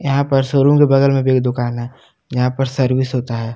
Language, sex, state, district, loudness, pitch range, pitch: Hindi, male, Jharkhand, Palamu, -16 LUFS, 125-135 Hz, 130 Hz